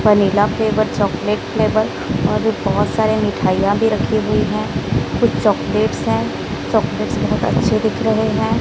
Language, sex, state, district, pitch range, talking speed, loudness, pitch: Hindi, male, Odisha, Sambalpur, 205-215 Hz, 155 wpm, -17 LUFS, 210 Hz